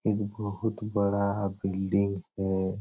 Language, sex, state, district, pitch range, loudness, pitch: Hindi, male, Bihar, Supaul, 95-105 Hz, -30 LUFS, 100 Hz